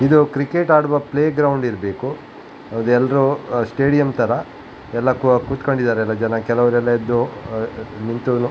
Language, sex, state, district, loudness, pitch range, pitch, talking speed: Kannada, male, Karnataka, Dakshina Kannada, -18 LUFS, 115-140 Hz, 125 Hz, 125 wpm